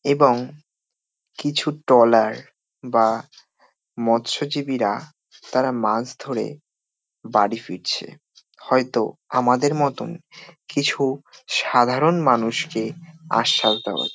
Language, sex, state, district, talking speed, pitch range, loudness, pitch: Bengali, male, West Bengal, North 24 Parganas, 75 wpm, 115-145 Hz, -21 LUFS, 130 Hz